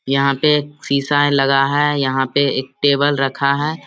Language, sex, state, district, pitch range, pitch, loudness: Hindi, male, Bihar, Samastipur, 135-145 Hz, 140 Hz, -16 LUFS